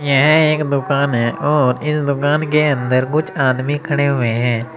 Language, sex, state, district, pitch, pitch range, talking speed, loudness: Hindi, male, Uttar Pradesh, Saharanpur, 140 Hz, 130-150 Hz, 175 wpm, -16 LUFS